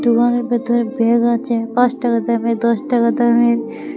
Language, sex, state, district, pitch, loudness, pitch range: Bengali, female, Tripura, West Tripura, 235 Hz, -16 LUFS, 235-240 Hz